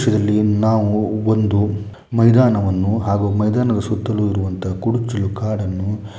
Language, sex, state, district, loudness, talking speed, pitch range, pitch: Kannada, male, Karnataka, Shimoga, -18 LUFS, 95 wpm, 100-110 Hz, 105 Hz